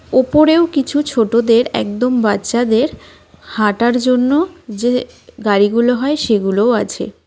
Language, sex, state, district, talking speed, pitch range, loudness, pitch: Bengali, female, West Bengal, Cooch Behar, 100 wpm, 220-270 Hz, -15 LUFS, 240 Hz